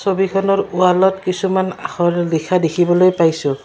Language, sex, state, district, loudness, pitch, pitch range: Assamese, female, Assam, Kamrup Metropolitan, -16 LUFS, 185 Hz, 175-190 Hz